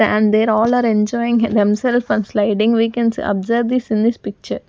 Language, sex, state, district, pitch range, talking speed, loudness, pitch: English, female, Punjab, Kapurthala, 215-235 Hz, 190 wpm, -16 LUFS, 225 Hz